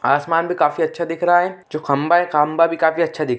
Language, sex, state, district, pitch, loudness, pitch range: Hindi, male, Bihar, Begusarai, 165 Hz, -18 LUFS, 150-175 Hz